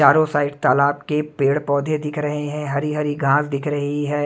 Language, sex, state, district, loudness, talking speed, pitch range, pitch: Hindi, male, Odisha, Nuapada, -20 LUFS, 210 wpm, 140-150 Hz, 145 Hz